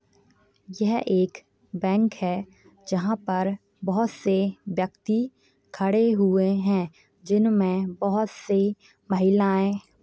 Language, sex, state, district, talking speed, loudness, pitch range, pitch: Hindi, female, Chhattisgarh, Jashpur, 100 wpm, -24 LUFS, 190-205 Hz, 195 Hz